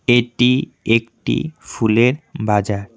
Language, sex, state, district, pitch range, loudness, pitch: Bengali, male, West Bengal, Cooch Behar, 110-125 Hz, -18 LUFS, 115 Hz